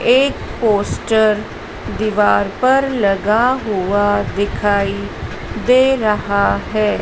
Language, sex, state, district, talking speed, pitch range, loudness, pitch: Hindi, female, Madhya Pradesh, Dhar, 85 wpm, 200-240 Hz, -16 LUFS, 210 Hz